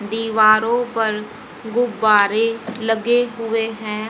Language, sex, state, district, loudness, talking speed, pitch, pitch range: Hindi, female, Haryana, Jhajjar, -18 LUFS, 90 wpm, 225 Hz, 215-230 Hz